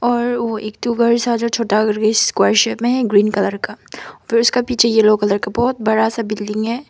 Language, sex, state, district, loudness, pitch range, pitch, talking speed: Hindi, female, Arunachal Pradesh, Papum Pare, -16 LUFS, 215-235 Hz, 230 Hz, 235 wpm